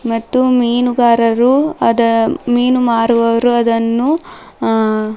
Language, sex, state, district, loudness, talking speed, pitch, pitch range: Kannada, female, Karnataka, Bidar, -13 LUFS, 80 wpm, 235 Hz, 230-250 Hz